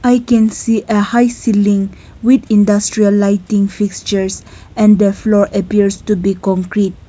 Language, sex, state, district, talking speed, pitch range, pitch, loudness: English, female, Nagaland, Kohima, 145 wpm, 200-220 Hz, 205 Hz, -13 LUFS